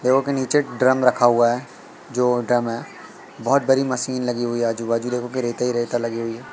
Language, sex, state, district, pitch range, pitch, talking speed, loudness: Hindi, male, Madhya Pradesh, Katni, 120-130 Hz, 125 Hz, 240 wpm, -21 LUFS